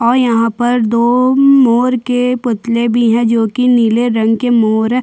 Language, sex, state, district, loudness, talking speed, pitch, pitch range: Hindi, female, Chhattisgarh, Sukma, -12 LUFS, 180 wpm, 235 Hz, 230-250 Hz